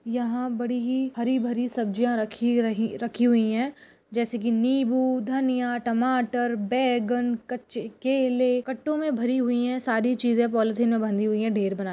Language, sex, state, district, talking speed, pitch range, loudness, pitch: Hindi, female, Maharashtra, Nagpur, 165 wpm, 230-250 Hz, -25 LUFS, 240 Hz